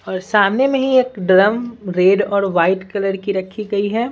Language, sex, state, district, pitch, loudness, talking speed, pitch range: Hindi, female, Bihar, Patna, 200 Hz, -16 LUFS, 205 wpm, 190-225 Hz